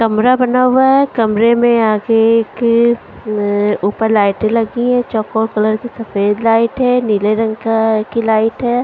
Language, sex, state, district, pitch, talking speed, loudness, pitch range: Hindi, female, Punjab, Pathankot, 225 Hz, 170 wpm, -13 LUFS, 215-240 Hz